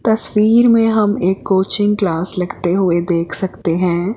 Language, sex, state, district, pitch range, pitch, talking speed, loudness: Hindi, female, Chandigarh, Chandigarh, 175-210 Hz, 190 Hz, 160 wpm, -15 LUFS